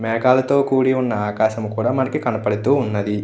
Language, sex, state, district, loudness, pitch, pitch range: Telugu, male, Andhra Pradesh, Anantapur, -19 LUFS, 120 Hz, 105-130 Hz